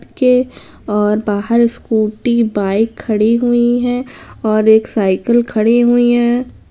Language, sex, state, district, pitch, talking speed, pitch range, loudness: Hindi, female, Bihar, Jamui, 230 Hz, 115 wpm, 215-240 Hz, -14 LUFS